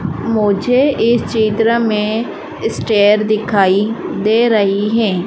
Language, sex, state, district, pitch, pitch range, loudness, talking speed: Hindi, female, Madhya Pradesh, Dhar, 215 Hz, 205-225 Hz, -14 LUFS, 100 wpm